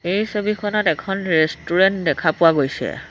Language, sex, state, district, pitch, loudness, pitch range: Assamese, female, Assam, Sonitpur, 180 Hz, -19 LUFS, 160-205 Hz